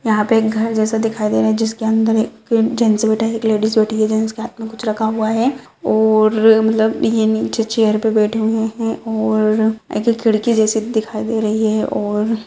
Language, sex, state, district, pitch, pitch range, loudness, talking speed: Hindi, female, Rajasthan, Nagaur, 220 Hz, 215-225 Hz, -16 LUFS, 220 wpm